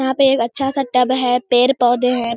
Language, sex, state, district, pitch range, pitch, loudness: Hindi, female, Bihar, Kishanganj, 245-265 Hz, 250 Hz, -16 LUFS